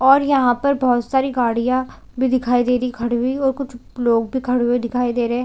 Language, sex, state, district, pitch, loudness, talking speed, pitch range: Hindi, female, Chhattisgarh, Bilaspur, 250 Hz, -19 LUFS, 230 wpm, 240-260 Hz